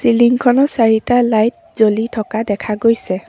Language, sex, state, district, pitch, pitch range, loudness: Assamese, female, Assam, Sonitpur, 230 Hz, 220-245 Hz, -15 LUFS